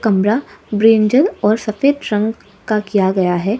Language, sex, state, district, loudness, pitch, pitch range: Hindi, female, Arunachal Pradesh, Lower Dibang Valley, -16 LUFS, 215 Hz, 205-225 Hz